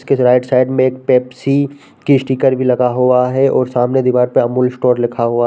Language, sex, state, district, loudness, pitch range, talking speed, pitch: Hindi, male, Bihar, Sitamarhi, -14 LUFS, 125-130 Hz, 230 wpm, 125 Hz